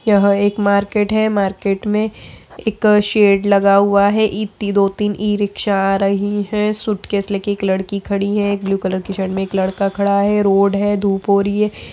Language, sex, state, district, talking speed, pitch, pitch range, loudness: Hindi, female, Bihar, Saharsa, 200 wpm, 200 Hz, 195-210 Hz, -16 LUFS